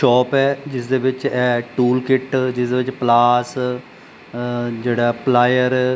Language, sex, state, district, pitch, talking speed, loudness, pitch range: Punjabi, male, Punjab, Pathankot, 125 Hz, 130 wpm, -18 LUFS, 120-130 Hz